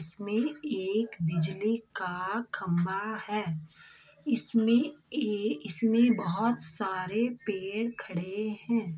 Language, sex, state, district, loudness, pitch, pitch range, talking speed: Hindi, female, Bihar, Begusarai, -31 LUFS, 215 Hz, 185-230 Hz, 85 wpm